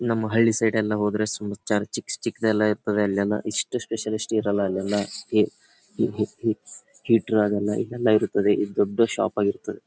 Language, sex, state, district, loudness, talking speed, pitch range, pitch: Kannada, male, Karnataka, Bijapur, -24 LUFS, 140 wpm, 105-110 Hz, 105 Hz